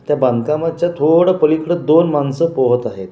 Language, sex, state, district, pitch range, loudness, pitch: Marathi, male, Maharashtra, Washim, 130-165 Hz, -15 LUFS, 155 Hz